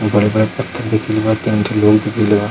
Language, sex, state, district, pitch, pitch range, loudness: Hindi, male, Bihar, Darbhanga, 110 Hz, 105-110 Hz, -15 LUFS